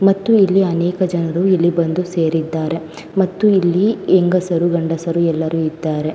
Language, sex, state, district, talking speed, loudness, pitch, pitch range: Kannada, female, Karnataka, Mysore, 125 wpm, -16 LUFS, 175 Hz, 165-185 Hz